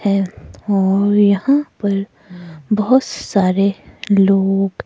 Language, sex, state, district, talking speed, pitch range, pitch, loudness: Hindi, female, Himachal Pradesh, Shimla, 85 wpm, 195-205 Hz, 200 Hz, -16 LUFS